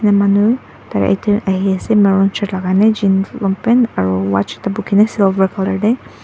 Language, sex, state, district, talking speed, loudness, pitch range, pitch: Nagamese, female, Nagaland, Dimapur, 155 wpm, -15 LUFS, 190-210 Hz, 200 Hz